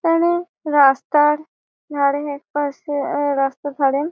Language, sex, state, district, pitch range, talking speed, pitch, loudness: Bengali, female, West Bengal, Malda, 280-310 Hz, 100 wpm, 290 Hz, -19 LUFS